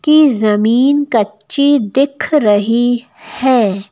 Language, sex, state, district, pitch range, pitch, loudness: Hindi, female, Madhya Pradesh, Bhopal, 215-285 Hz, 245 Hz, -13 LUFS